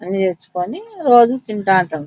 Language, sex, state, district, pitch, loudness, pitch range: Telugu, female, Andhra Pradesh, Anantapur, 195 Hz, -16 LUFS, 180-240 Hz